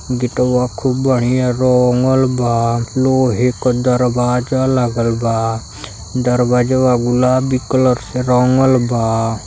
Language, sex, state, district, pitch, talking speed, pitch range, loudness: Bhojpuri, male, Uttar Pradesh, Deoria, 125 Hz, 100 wpm, 120-130 Hz, -15 LUFS